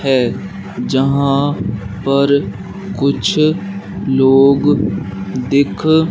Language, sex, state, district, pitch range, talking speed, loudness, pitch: Hindi, male, Madhya Pradesh, Katni, 105-145 Hz, 60 wpm, -15 LUFS, 140 Hz